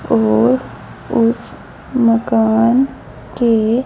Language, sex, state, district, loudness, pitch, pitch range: Hindi, female, Haryana, Charkhi Dadri, -15 LUFS, 230 Hz, 220-245 Hz